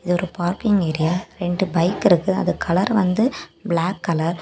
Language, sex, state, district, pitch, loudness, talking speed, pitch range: Tamil, female, Tamil Nadu, Kanyakumari, 180 Hz, -20 LUFS, 175 wpm, 170-190 Hz